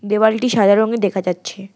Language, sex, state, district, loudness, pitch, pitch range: Bengali, female, West Bengal, Alipurduar, -16 LUFS, 205 Hz, 195-220 Hz